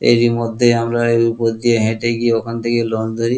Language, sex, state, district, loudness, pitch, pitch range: Bengali, male, West Bengal, Kolkata, -16 LUFS, 115 Hz, 115-120 Hz